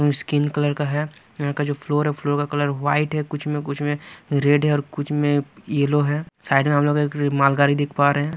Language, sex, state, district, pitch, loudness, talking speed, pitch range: Hindi, male, Bihar, Kaimur, 145 Hz, -21 LUFS, 250 wpm, 145-150 Hz